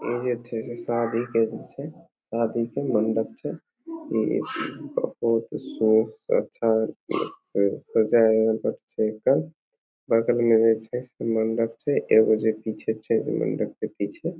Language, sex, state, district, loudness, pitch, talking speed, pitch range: Maithili, male, Bihar, Samastipur, -25 LUFS, 115 Hz, 90 wpm, 110-120 Hz